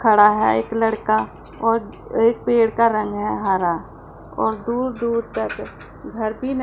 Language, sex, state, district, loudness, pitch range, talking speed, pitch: Hindi, female, Punjab, Pathankot, -20 LUFS, 200-230 Hz, 155 wpm, 225 Hz